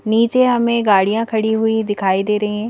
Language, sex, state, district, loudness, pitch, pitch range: Hindi, female, Madhya Pradesh, Bhopal, -16 LUFS, 220 Hz, 210-230 Hz